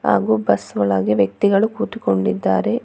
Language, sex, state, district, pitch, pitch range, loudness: Kannada, female, Karnataka, Bangalore, 100 Hz, 95-110 Hz, -18 LUFS